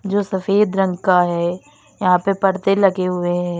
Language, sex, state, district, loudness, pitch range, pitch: Hindi, female, Uttar Pradesh, Lalitpur, -18 LUFS, 180-195 Hz, 185 Hz